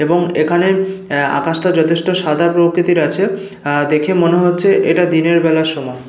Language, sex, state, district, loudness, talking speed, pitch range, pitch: Bengali, male, Jharkhand, Sahebganj, -14 LUFS, 160 wpm, 155-180 Hz, 170 Hz